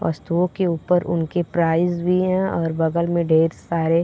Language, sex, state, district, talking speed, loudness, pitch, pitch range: Hindi, female, Bihar, Gopalganj, 195 wpm, -20 LUFS, 170 Hz, 165-180 Hz